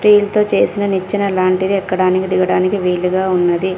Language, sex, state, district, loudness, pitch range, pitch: Telugu, female, Telangana, Komaram Bheem, -15 LUFS, 185-200 Hz, 185 Hz